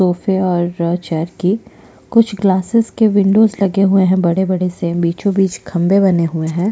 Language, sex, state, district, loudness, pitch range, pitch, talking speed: Hindi, female, Chhattisgarh, Jashpur, -15 LUFS, 175-200 Hz, 190 Hz, 180 wpm